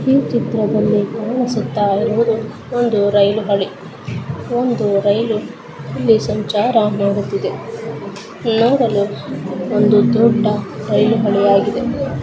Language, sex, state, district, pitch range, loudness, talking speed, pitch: Kannada, female, Karnataka, Dharwad, 200-225 Hz, -16 LUFS, 85 wpm, 210 Hz